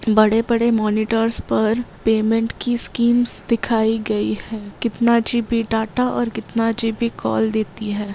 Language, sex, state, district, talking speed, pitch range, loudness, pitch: Hindi, female, Uttar Pradesh, Varanasi, 130 wpm, 215-235 Hz, -20 LUFS, 225 Hz